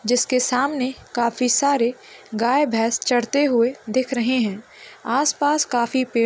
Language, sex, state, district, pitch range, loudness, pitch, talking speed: Hindi, female, Chhattisgarh, Kabirdham, 235-280 Hz, -20 LUFS, 250 Hz, 145 wpm